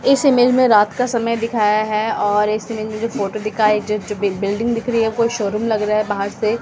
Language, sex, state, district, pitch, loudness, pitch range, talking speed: Hindi, female, Delhi, New Delhi, 215 Hz, -18 LUFS, 210-230 Hz, 265 wpm